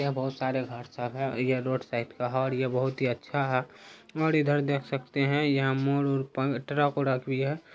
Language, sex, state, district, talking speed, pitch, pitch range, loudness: Hindi, male, Bihar, Araria, 230 wpm, 135 Hz, 130-140 Hz, -29 LUFS